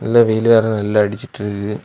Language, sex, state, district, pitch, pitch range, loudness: Tamil, male, Tamil Nadu, Kanyakumari, 110 Hz, 105-115 Hz, -16 LUFS